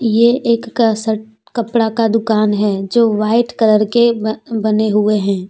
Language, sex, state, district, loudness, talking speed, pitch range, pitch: Hindi, female, Jharkhand, Deoghar, -15 LUFS, 155 wpm, 215-235 Hz, 220 Hz